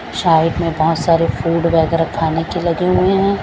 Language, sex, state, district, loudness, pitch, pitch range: Hindi, female, Chhattisgarh, Raipur, -15 LUFS, 165 Hz, 165-175 Hz